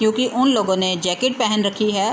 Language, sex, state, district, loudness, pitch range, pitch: Hindi, female, Bihar, Gopalganj, -19 LUFS, 190-245 Hz, 215 Hz